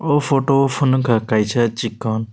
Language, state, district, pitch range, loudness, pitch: Kokborok, Tripura, West Tripura, 110-135 Hz, -18 LUFS, 120 Hz